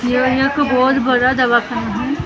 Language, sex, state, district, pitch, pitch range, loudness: Hindi, female, Maharashtra, Gondia, 255 Hz, 245-265 Hz, -15 LUFS